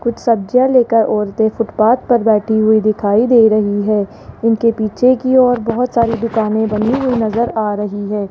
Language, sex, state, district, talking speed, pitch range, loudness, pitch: Hindi, male, Rajasthan, Jaipur, 180 wpm, 215-235 Hz, -14 LUFS, 225 Hz